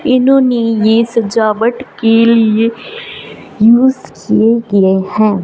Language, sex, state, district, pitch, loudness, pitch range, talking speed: Hindi, male, Punjab, Fazilka, 230 Hz, -11 LUFS, 220-250 Hz, 100 wpm